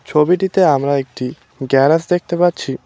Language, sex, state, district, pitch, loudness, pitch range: Bengali, male, West Bengal, Cooch Behar, 150 Hz, -16 LUFS, 135-175 Hz